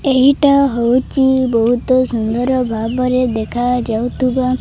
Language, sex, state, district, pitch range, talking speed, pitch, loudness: Odia, female, Odisha, Malkangiri, 235-260 Hz, 80 wpm, 255 Hz, -15 LUFS